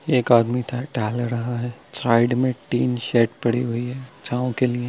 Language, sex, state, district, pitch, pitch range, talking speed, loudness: Hindi, male, Chhattisgarh, Bilaspur, 120 Hz, 120-125 Hz, 185 wpm, -22 LUFS